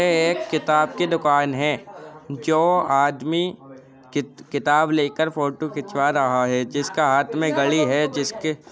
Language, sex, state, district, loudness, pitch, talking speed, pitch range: Hindi, male, Uttar Pradesh, Jyotiba Phule Nagar, -21 LUFS, 150 Hz, 150 wpm, 140-155 Hz